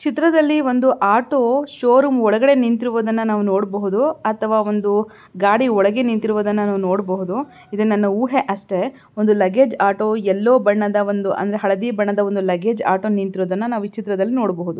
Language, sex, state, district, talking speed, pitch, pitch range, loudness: Kannada, female, Karnataka, Belgaum, 145 wpm, 210 Hz, 200-245 Hz, -18 LUFS